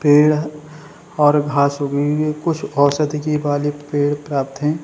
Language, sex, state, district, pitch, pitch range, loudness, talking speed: Hindi, male, Uttar Pradesh, Hamirpur, 145 Hz, 145-150 Hz, -18 LUFS, 160 wpm